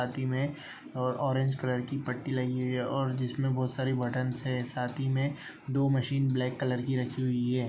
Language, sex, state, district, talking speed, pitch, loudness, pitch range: Hindi, male, Uttar Pradesh, Budaun, 225 wpm, 130 Hz, -31 LUFS, 125-135 Hz